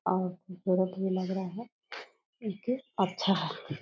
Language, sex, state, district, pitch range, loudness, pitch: Hindi, female, Bihar, Purnia, 185-200 Hz, -32 LUFS, 190 Hz